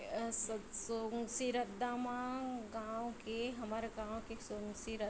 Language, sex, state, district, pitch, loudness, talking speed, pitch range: Chhattisgarhi, female, Chhattisgarh, Bilaspur, 225 Hz, -41 LUFS, 130 wpm, 220-245 Hz